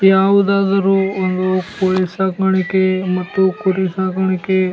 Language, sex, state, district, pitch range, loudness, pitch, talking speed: Kannada, male, Karnataka, Bellary, 185-195 Hz, -16 LUFS, 190 Hz, 115 wpm